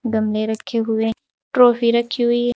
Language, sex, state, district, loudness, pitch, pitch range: Hindi, female, Uttar Pradesh, Saharanpur, -18 LUFS, 235 Hz, 220-240 Hz